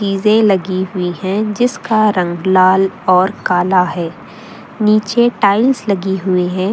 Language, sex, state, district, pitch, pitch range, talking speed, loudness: Hindi, female, Delhi, New Delhi, 195 Hz, 185-215 Hz, 135 wpm, -14 LUFS